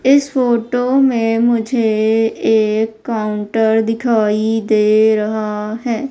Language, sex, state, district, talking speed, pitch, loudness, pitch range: Hindi, female, Madhya Pradesh, Umaria, 100 wpm, 225 Hz, -15 LUFS, 215-235 Hz